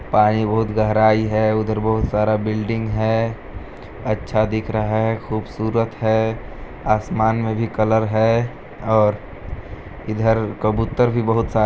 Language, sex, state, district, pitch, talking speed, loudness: Hindi, male, Chhattisgarh, Balrampur, 110 Hz, 135 wpm, -19 LUFS